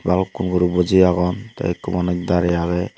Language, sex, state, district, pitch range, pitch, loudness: Chakma, male, Tripura, Unakoti, 90-95 Hz, 90 Hz, -19 LUFS